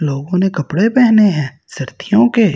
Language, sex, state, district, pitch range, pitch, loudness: Hindi, male, Delhi, New Delhi, 150-220 Hz, 190 Hz, -13 LUFS